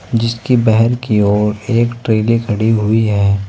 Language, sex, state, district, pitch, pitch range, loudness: Hindi, male, Uttar Pradesh, Saharanpur, 110 Hz, 105-115 Hz, -14 LUFS